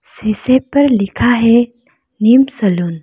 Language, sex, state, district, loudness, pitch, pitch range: Hindi, female, Arunachal Pradesh, Lower Dibang Valley, -13 LUFS, 240 Hz, 215-260 Hz